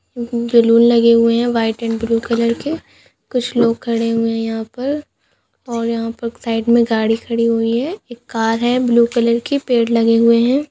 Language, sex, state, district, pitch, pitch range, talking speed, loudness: Hindi, female, West Bengal, Kolkata, 235 Hz, 230-240 Hz, 200 wpm, -16 LUFS